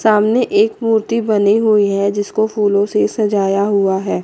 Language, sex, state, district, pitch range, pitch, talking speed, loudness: Hindi, female, Chandigarh, Chandigarh, 200-220 Hz, 210 Hz, 170 wpm, -15 LUFS